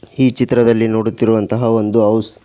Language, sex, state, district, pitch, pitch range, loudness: Kannada, male, Karnataka, Koppal, 115 Hz, 110-120 Hz, -14 LUFS